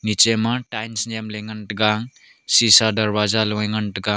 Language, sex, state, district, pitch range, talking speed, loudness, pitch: Wancho, male, Arunachal Pradesh, Longding, 105-110 Hz, 175 wpm, -18 LUFS, 110 Hz